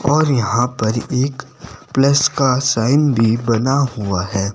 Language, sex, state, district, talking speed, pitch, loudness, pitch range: Hindi, male, Himachal Pradesh, Shimla, 145 wpm, 130 Hz, -16 LUFS, 115-140 Hz